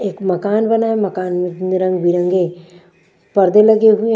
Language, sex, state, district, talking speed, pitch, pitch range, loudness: Hindi, female, Bihar, West Champaran, 145 wpm, 185 Hz, 180-210 Hz, -15 LUFS